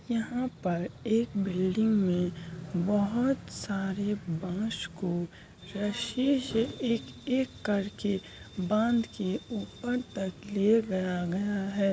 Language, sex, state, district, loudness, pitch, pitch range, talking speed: Hindi, female, Bihar, Muzaffarpur, -30 LUFS, 205 Hz, 185-225 Hz, 100 wpm